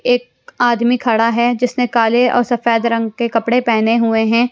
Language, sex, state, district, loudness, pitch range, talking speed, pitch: Hindi, female, Bihar, Kaimur, -15 LUFS, 230-245 Hz, 185 wpm, 235 Hz